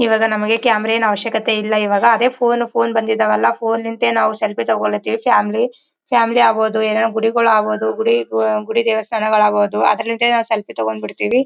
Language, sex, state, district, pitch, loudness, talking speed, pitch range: Kannada, female, Karnataka, Bellary, 220 Hz, -16 LUFS, 150 wpm, 215-230 Hz